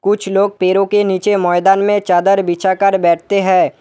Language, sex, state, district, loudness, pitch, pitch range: Hindi, male, West Bengal, Alipurduar, -13 LUFS, 195 Hz, 185-200 Hz